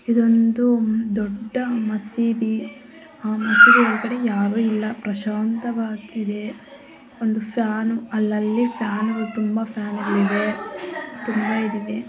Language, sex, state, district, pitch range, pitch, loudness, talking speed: Kannada, female, Karnataka, Mysore, 215-235 Hz, 225 Hz, -21 LUFS, 90 wpm